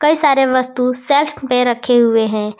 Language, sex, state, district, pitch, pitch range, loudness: Hindi, female, Jharkhand, Palamu, 250 Hz, 240-280 Hz, -14 LUFS